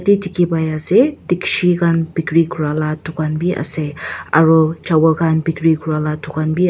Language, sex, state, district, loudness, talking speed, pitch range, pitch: Nagamese, female, Nagaland, Dimapur, -16 LUFS, 205 wpm, 155-170 Hz, 160 Hz